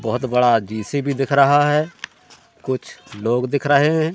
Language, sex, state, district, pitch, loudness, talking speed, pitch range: Hindi, male, Madhya Pradesh, Katni, 140 Hz, -18 LUFS, 160 wpm, 125-145 Hz